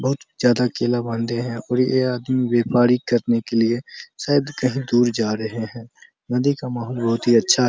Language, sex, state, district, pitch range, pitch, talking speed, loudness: Hindi, male, Bihar, Araria, 115-125 Hz, 120 Hz, 195 wpm, -21 LUFS